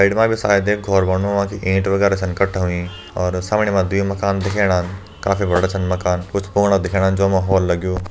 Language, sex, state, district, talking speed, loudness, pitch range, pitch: Hindi, male, Uttarakhand, Uttarkashi, 230 wpm, -18 LUFS, 90-100 Hz, 95 Hz